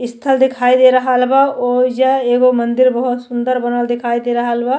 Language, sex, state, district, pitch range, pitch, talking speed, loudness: Bhojpuri, female, Uttar Pradesh, Deoria, 240-255 Hz, 250 Hz, 190 wpm, -14 LUFS